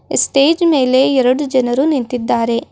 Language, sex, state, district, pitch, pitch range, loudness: Kannada, female, Karnataka, Bidar, 260 Hz, 250-285 Hz, -14 LUFS